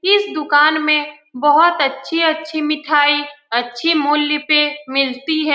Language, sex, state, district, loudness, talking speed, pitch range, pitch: Hindi, female, Bihar, Lakhisarai, -16 LUFS, 120 wpm, 290-310 Hz, 295 Hz